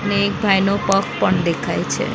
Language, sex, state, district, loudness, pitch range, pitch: Gujarati, female, Maharashtra, Mumbai Suburban, -18 LUFS, 195-205 Hz, 200 Hz